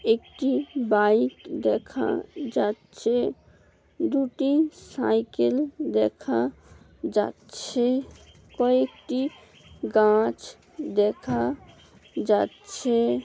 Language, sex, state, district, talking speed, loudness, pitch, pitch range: Bengali, female, West Bengal, Malda, 60 wpm, -25 LUFS, 235 Hz, 205-275 Hz